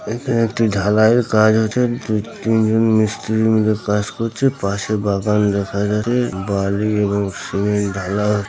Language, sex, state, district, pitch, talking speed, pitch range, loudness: Bengali, male, West Bengal, North 24 Parganas, 105 Hz, 150 wpm, 100-110 Hz, -18 LUFS